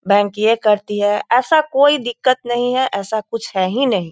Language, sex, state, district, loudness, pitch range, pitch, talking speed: Hindi, female, Bihar, East Champaran, -16 LUFS, 205-255 Hz, 225 Hz, 205 wpm